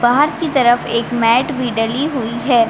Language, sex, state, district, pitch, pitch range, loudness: Hindi, female, Chhattisgarh, Bilaspur, 240 Hz, 235-270 Hz, -16 LUFS